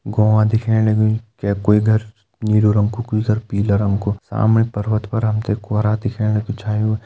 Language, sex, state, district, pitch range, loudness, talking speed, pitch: Hindi, male, Uttarakhand, Uttarkashi, 105-110 Hz, -18 LUFS, 185 wpm, 110 Hz